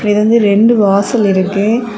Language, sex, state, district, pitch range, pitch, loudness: Tamil, female, Tamil Nadu, Kanyakumari, 200-225 Hz, 210 Hz, -11 LUFS